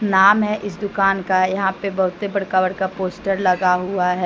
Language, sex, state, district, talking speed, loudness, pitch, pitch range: Hindi, female, Jharkhand, Deoghar, 195 wpm, -19 LUFS, 190 Hz, 185-200 Hz